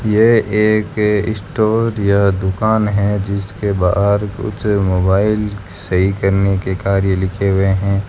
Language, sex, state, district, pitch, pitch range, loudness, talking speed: Hindi, male, Rajasthan, Bikaner, 100 Hz, 95-105 Hz, -16 LUFS, 125 wpm